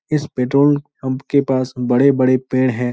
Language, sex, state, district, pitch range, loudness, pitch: Hindi, male, Bihar, Supaul, 130-140 Hz, -17 LUFS, 130 Hz